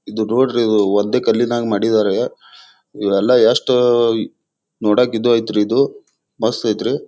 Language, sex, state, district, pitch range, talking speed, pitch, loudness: Kannada, male, Karnataka, Bijapur, 110-120 Hz, 85 wpm, 115 Hz, -16 LUFS